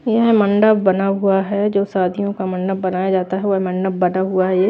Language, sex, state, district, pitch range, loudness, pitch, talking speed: Hindi, female, Chhattisgarh, Raipur, 185-200 Hz, -17 LUFS, 190 Hz, 240 wpm